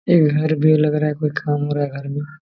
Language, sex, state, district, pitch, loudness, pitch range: Hindi, male, Jharkhand, Jamtara, 150 Hz, -19 LUFS, 145-155 Hz